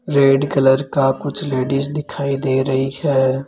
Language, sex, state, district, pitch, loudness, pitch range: Hindi, male, Rajasthan, Jaipur, 135 Hz, -17 LUFS, 135-140 Hz